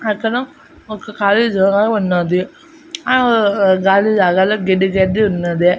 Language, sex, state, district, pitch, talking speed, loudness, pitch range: Telugu, female, Andhra Pradesh, Annamaya, 205 Hz, 115 wpm, -14 LUFS, 190-230 Hz